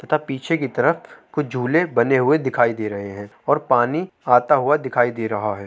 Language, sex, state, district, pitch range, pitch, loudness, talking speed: Hindi, male, Uttar Pradesh, Deoria, 115-150 Hz, 130 Hz, -20 LUFS, 210 wpm